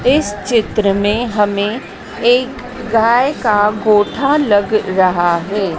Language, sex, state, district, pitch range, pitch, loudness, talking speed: Hindi, female, Madhya Pradesh, Dhar, 205-245 Hz, 215 Hz, -14 LUFS, 115 wpm